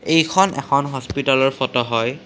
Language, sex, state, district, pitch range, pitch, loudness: Assamese, male, Assam, Kamrup Metropolitan, 130-140 Hz, 135 Hz, -18 LUFS